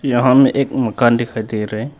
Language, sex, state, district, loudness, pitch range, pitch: Hindi, male, Arunachal Pradesh, Longding, -16 LUFS, 110-135 Hz, 120 Hz